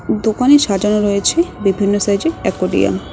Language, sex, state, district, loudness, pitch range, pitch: Bengali, female, West Bengal, Cooch Behar, -15 LUFS, 195-220 Hz, 205 Hz